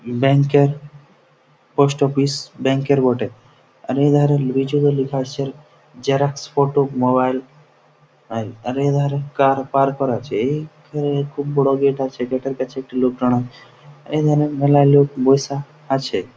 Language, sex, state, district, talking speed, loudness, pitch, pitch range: Bengali, male, West Bengal, Jhargram, 160 wpm, -19 LUFS, 140 Hz, 130-145 Hz